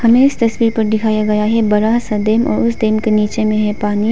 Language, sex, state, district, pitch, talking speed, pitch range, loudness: Hindi, female, Arunachal Pradesh, Papum Pare, 220 Hz, 260 wpm, 215-230 Hz, -14 LUFS